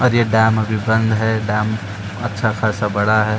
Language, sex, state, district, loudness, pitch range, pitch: Hindi, male, Uttar Pradesh, Etah, -18 LUFS, 105-110 Hz, 110 Hz